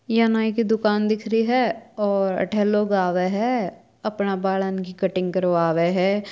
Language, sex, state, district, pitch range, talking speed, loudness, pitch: Marwari, female, Rajasthan, Churu, 185-220 Hz, 170 wpm, -22 LUFS, 200 Hz